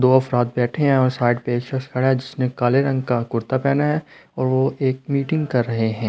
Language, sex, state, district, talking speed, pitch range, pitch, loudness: Hindi, male, Delhi, New Delhi, 245 wpm, 120-135 Hz, 130 Hz, -20 LUFS